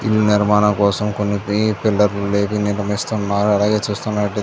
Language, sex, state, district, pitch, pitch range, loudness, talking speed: Telugu, male, Andhra Pradesh, Chittoor, 105 Hz, 100-105 Hz, -18 LUFS, 120 wpm